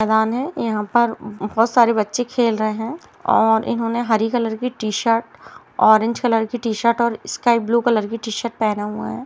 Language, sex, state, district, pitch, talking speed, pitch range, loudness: Hindi, female, Bihar, Sitamarhi, 225 Hz, 190 wpm, 220-235 Hz, -19 LUFS